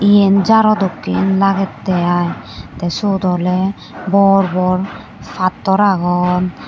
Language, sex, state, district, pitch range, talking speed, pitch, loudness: Chakma, female, Tripura, West Tripura, 180-195 Hz, 110 wpm, 190 Hz, -15 LUFS